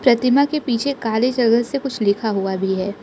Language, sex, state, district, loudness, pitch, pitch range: Hindi, female, Arunachal Pradesh, Lower Dibang Valley, -19 LUFS, 235 Hz, 205-265 Hz